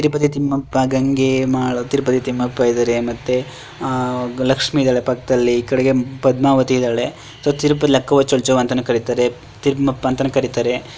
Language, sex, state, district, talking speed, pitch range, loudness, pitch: Kannada, male, Karnataka, Dharwad, 130 wpm, 125-135 Hz, -17 LUFS, 130 Hz